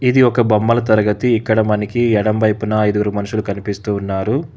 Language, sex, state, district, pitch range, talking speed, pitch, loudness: Telugu, male, Telangana, Hyderabad, 105-120 Hz, 145 wpm, 110 Hz, -16 LUFS